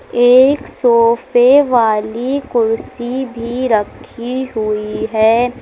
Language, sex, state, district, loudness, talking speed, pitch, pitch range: Hindi, female, Uttar Pradesh, Lucknow, -14 LUFS, 85 wpm, 240 Hz, 225-255 Hz